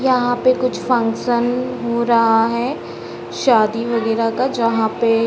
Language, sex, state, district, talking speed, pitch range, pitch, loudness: Hindi, female, Bihar, Sitamarhi, 150 wpm, 225-250 Hz, 235 Hz, -17 LUFS